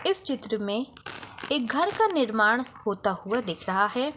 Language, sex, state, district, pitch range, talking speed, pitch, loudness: Hindi, female, Chhattisgarh, Bastar, 210-280 Hz, 170 wpm, 245 Hz, -26 LUFS